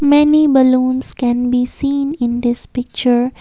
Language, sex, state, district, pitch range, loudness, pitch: English, female, Assam, Kamrup Metropolitan, 245-280 Hz, -15 LUFS, 255 Hz